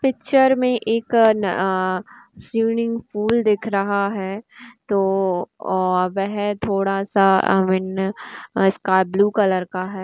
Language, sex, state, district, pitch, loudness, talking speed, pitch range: Hindi, female, Uttar Pradesh, Jalaun, 200 Hz, -20 LUFS, 120 wpm, 190-225 Hz